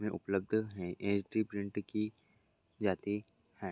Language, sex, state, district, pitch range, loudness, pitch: Hindi, male, Uttar Pradesh, Jalaun, 100-105 Hz, -37 LUFS, 105 Hz